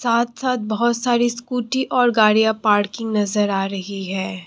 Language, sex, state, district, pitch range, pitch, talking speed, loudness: Hindi, female, Assam, Kamrup Metropolitan, 205-240 Hz, 220 Hz, 175 wpm, -19 LUFS